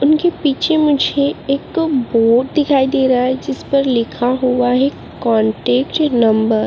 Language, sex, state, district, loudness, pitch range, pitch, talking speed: Hindi, female, Uttarakhand, Uttarkashi, -15 LUFS, 245-285 Hz, 265 Hz, 155 wpm